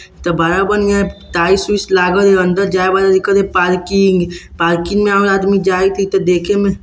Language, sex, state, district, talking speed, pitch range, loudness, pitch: Bajjika, male, Bihar, Vaishali, 210 wpm, 180-200 Hz, -13 LUFS, 195 Hz